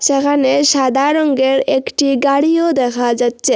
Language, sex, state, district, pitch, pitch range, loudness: Bengali, female, Assam, Hailakandi, 275 Hz, 265-295 Hz, -14 LUFS